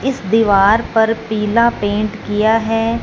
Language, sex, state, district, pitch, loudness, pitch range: Hindi, female, Punjab, Fazilka, 220 Hz, -15 LUFS, 210-225 Hz